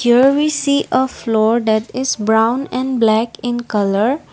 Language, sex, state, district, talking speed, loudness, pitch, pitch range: English, female, Assam, Kamrup Metropolitan, 165 wpm, -16 LUFS, 240 Hz, 220-265 Hz